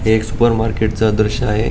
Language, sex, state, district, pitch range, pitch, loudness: Marathi, male, Goa, North and South Goa, 110-115 Hz, 110 Hz, -16 LUFS